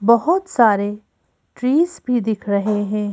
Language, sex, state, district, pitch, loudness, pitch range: Hindi, female, Madhya Pradesh, Bhopal, 220 Hz, -18 LUFS, 205-250 Hz